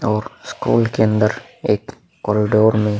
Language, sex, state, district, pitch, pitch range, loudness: Hindi, male, Uttar Pradesh, Muzaffarnagar, 105 Hz, 105-110 Hz, -18 LUFS